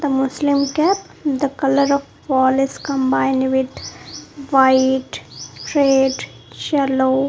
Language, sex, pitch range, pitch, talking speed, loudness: English, female, 265-280 Hz, 270 Hz, 105 wpm, -18 LUFS